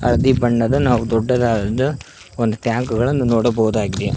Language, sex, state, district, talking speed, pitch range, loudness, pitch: Kannada, male, Karnataka, Koppal, 115 wpm, 110-125 Hz, -18 LUFS, 120 Hz